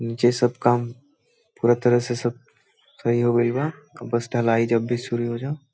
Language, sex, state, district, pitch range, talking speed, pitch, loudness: Bhojpuri, male, Bihar, Saran, 120-125 Hz, 220 wpm, 120 Hz, -22 LUFS